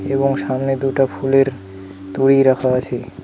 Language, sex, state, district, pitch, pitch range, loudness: Bengali, male, West Bengal, Alipurduar, 135 Hz, 125-135 Hz, -17 LUFS